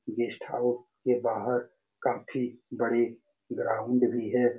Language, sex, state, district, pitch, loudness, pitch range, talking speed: Hindi, male, Bihar, Saran, 120 Hz, -30 LUFS, 120-125 Hz, 120 wpm